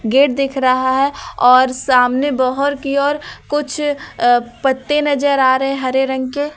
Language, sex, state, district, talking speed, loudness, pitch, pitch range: Hindi, female, Bihar, Katihar, 165 wpm, -15 LUFS, 270 Hz, 255-285 Hz